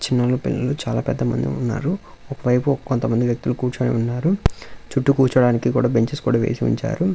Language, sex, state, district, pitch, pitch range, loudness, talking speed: Telugu, male, Andhra Pradesh, Visakhapatnam, 125 Hz, 120-140 Hz, -20 LUFS, 140 wpm